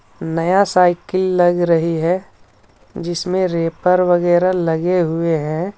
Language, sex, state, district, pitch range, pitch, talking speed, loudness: Hindi, male, Jharkhand, Ranchi, 165-180 Hz, 175 Hz, 115 wpm, -17 LUFS